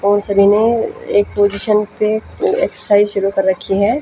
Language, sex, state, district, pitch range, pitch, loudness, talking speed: Hindi, female, Haryana, Jhajjar, 200-215 Hz, 205 Hz, -15 LUFS, 165 wpm